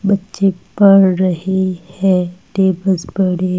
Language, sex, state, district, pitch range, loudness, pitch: Hindi, female, Delhi, New Delhi, 180-195 Hz, -15 LUFS, 190 Hz